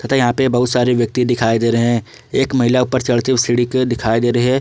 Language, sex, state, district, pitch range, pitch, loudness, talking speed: Hindi, male, Jharkhand, Ranchi, 120-130 Hz, 120 Hz, -16 LUFS, 245 wpm